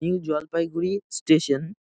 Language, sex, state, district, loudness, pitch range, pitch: Bengali, male, West Bengal, Jalpaiguri, -24 LUFS, 155-180 Hz, 165 Hz